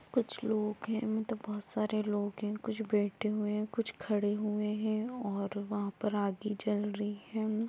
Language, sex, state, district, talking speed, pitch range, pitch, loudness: Hindi, female, Jharkhand, Jamtara, 180 wpm, 205-220 Hz, 210 Hz, -35 LUFS